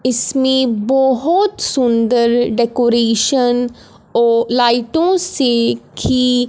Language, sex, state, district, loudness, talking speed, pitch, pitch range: Hindi, female, Punjab, Fazilka, -15 LUFS, 75 wpm, 245 Hz, 235-265 Hz